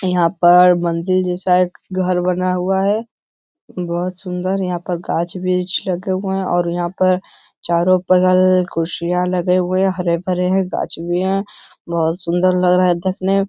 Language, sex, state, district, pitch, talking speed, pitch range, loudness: Hindi, male, Bihar, Lakhisarai, 180 Hz, 180 wpm, 175-185 Hz, -17 LUFS